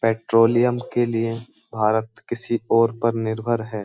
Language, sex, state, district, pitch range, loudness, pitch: Hindi, male, Uttar Pradesh, Jyotiba Phule Nagar, 110-120 Hz, -21 LUFS, 115 Hz